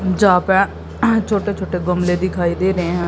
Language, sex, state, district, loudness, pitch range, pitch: Hindi, female, Haryana, Jhajjar, -17 LUFS, 180-195 Hz, 185 Hz